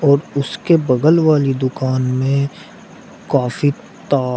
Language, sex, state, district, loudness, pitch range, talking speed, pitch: Hindi, male, Uttar Pradesh, Shamli, -17 LUFS, 130-160 Hz, 110 wpm, 140 Hz